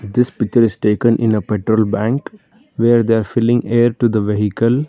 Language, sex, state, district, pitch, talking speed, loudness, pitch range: English, male, Karnataka, Bangalore, 115 Hz, 195 wpm, -16 LUFS, 105-120 Hz